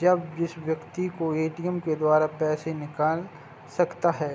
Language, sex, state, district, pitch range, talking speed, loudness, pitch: Hindi, male, Bihar, Gopalganj, 155-175 Hz, 150 wpm, -27 LUFS, 160 Hz